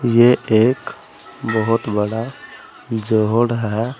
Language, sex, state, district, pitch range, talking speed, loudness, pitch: Hindi, male, Uttar Pradesh, Saharanpur, 110-120 Hz, 75 wpm, -18 LUFS, 115 Hz